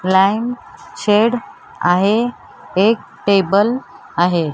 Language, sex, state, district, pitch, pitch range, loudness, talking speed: Marathi, female, Maharashtra, Mumbai Suburban, 200 Hz, 185-235 Hz, -17 LUFS, 80 wpm